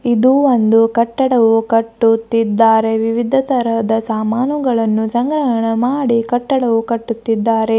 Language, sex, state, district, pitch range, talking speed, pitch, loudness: Kannada, female, Karnataka, Bidar, 225-245 Hz, 90 wpm, 230 Hz, -15 LUFS